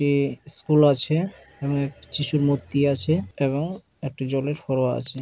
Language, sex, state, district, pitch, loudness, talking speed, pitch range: Bengali, male, West Bengal, Malda, 140 Hz, -22 LUFS, 140 wpm, 135-150 Hz